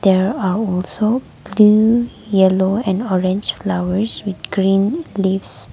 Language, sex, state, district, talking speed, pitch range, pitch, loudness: English, female, Nagaland, Kohima, 115 wpm, 190-215 Hz, 195 Hz, -17 LUFS